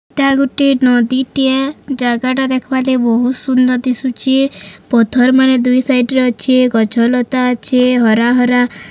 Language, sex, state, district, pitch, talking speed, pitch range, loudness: Odia, female, Odisha, Sambalpur, 255 Hz, 135 wpm, 245-265 Hz, -13 LUFS